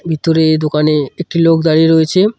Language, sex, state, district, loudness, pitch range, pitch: Bengali, male, West Bengal, Cooch Behar, -12 LUFS, 155-165 Hz, 160 Hz